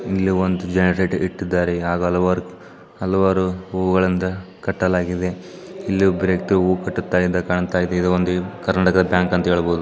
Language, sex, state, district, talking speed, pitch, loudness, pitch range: Kannada, male, Karnataka, Chamarajanagar, 130 wpm, 90 Hz, -20 LUFS, 90-95 Hz